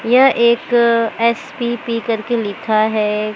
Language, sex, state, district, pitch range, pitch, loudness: Hindi, male, Maharashtra, Mumbai Suburban, 215-235 Hz, 230 Hz, -16 LUFS